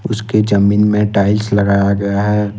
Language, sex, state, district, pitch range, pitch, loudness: Hindi, male, Jharkhand, Ranchi, 100-105 Hz, 105 Hz, -14 LUFS